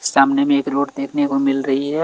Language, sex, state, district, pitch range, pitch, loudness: Hindi, male, Chhattisgarh, Raipur, 135-140 Hz, 140 Hz, -18 LUFS